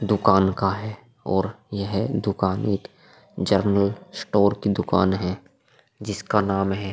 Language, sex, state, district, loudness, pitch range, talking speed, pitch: Hindi, male, Bihar, Vaishali, -23 LUFS, 95-105 Hz, 130 wpm, 100 Hz